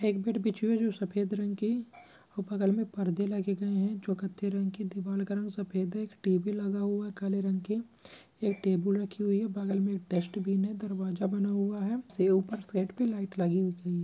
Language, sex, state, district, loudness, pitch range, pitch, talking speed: Hindi, male, Andhra Pradesh, Guntur, -32 LUFS, 195-210 Hz, 200 Hz, 190 wpm